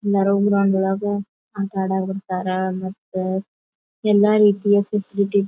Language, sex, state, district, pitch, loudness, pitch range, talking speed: Kannada, female, Karnataka, Bijapur, 200 Hz, -20 LUFS, 190-205 Hz, 120 wpm